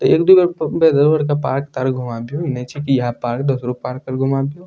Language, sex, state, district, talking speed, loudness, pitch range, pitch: Maithili, male, Bihar, Madhepura, 205 wpm, -17 LUFS, 125-155 Hz, 135 Hz